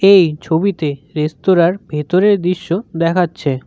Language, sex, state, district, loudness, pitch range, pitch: Bengali, male, West Bengal, Cooch Behar, -15 LUFS, 150-185 Hz, 170 Hz